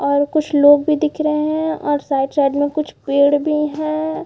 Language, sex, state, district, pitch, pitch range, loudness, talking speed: Hindi, female, Chhattisgarh, Bilaspur, 295 Hz, 285-305 Hz, -17 LUFS, 210 wpm